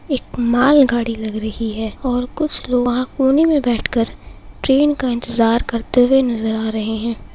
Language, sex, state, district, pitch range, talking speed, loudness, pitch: Hindi, female, Bihar, Saharsa, 225-265 Hz, 170 wpm, -17 LUFS, 240 Hz